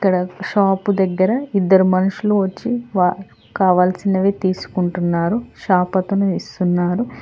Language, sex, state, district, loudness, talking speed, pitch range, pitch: Telugu, female, Telangana, Hyderabad, -18 LUFS, 90 wpm, 185-200 Hz, 190 Hz